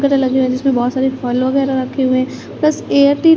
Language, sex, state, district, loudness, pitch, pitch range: Hindi, female, Chhattisgarh, Raipur, -15 LUFS, 265 Hz, 255-280 Hz